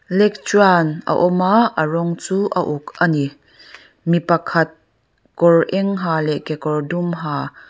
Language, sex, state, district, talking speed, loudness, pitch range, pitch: Mizo, female, Mizoram, Aizawl, 150 wpm, -18 LUFS, 155-185 Hz, 170 Hz